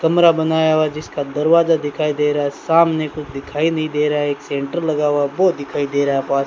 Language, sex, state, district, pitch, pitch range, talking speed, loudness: Hindi, male, Rajasthan, Bikaner, 150 Hz, 145-160 Hz, 270 wpm, -18 LUFS